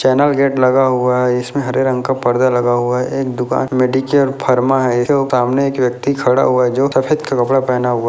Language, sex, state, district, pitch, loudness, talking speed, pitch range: Hindi, male, Bihar, Jahanabad, 130 Hz, -15 LUFS, 245 wpm, 125-135 Hz